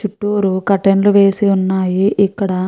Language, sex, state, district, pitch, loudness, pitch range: Telugu, female, Andhra Pradesh, Chittoor, 195 Hz, -14 LUFS, 190-205 Hz